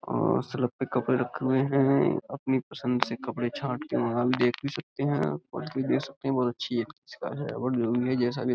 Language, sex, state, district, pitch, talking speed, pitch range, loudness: Hindi, male, Uttar Pradesh, Budaun, 125 Hz, 175 wpm, 120-135 Hz, -28 LUFS